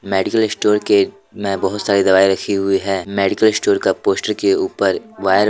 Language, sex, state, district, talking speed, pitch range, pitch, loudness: Hindi, male, Jharkhand, Deoghar, 195 wpm, 95-110 Hz, 100 Hz, -16 LUFS